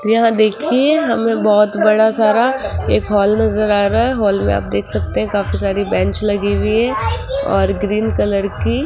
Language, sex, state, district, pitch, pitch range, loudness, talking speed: Hindi, female, Rajasthan, Jaipur, 210 Hz, 200-225 Hz, -15 LUFS, 195 wpm